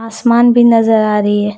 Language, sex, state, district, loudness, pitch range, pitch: Hindi, female, Jharkhand, Deoghar, -10 LUFS, 210-235 Hz, 225 Hz